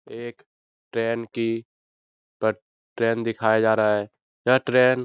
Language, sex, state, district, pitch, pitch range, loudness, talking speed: Hindi, male, Bihar, Jahanabad, 115 Hz, 110-120 Hz, -23 LUFS, 140 wpm